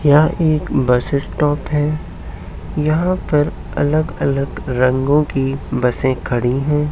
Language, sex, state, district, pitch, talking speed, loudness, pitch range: Hindi, male, Uttar Pradesh, Hamirpur, 140 Hz, 120 wpm, -17 LUFS, 125-150 Hz